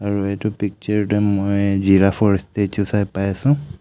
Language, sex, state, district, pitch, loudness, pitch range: Assamese, male, Assam, Kamrup Metropolitan, 100 Hz, -19 LUFS, 100-105 Hz